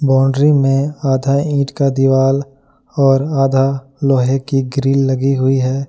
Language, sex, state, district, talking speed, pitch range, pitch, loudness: Hindi, male, Jharkhand, Ranchi, 140 wpm, 135-140 Hz, 135 Hz, -14 LUFS